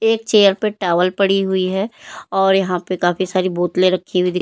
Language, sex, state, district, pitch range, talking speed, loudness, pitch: Hindi, female, Uttar Pradesh, Lalitpur, 180-195 Hz, 215 wpm, -17 LUFS, 185 Hz